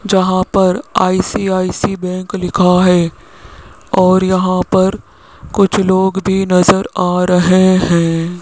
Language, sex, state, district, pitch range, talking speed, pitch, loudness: Hindi, male, Rajasthan, Jaipur, 180-190 Hz, 105 wpm, 185 Hz, -13 LUFS